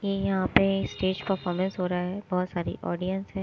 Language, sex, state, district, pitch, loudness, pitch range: Hindi, female, Chandigarh, Chandigarh, 190 Hz, -28 LUFS, 180-195 Hz